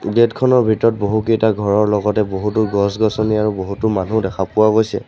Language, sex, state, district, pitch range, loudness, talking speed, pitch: Assamese, male, Assam, Sonitpur, 100-110 Hz, -16 LUFS, 175 wpm, 110 Hz